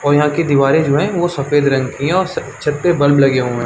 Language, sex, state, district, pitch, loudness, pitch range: Hindi, male, Chhattisgarh, Bastar, 145 Hz, -15 LUFS, 140-160 Hz